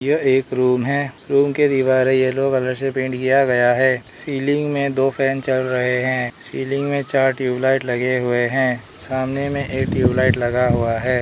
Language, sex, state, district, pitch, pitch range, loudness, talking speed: Hindi, male, Arunachal Pradesh, Lower Dibang Valley, 130 Hz, 125-135 Hz, -19 LUFS, 185 wpm